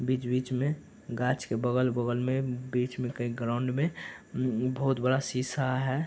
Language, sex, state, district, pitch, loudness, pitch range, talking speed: Hindi, male, Bihar, Araria, 125 Hz, -30 LUFS, 125-130 Hz, 160 wpm